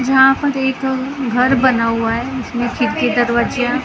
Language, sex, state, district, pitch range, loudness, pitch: Hindi, female, Maharashtra, Gondia, 240-265 Hz, -16 LUFS, 255 Hz